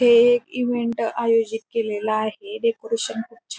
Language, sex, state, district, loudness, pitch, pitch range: Marathi, female, Maharashtra, Pune, -22 LUFS, 235 Hz, 225-245 Hz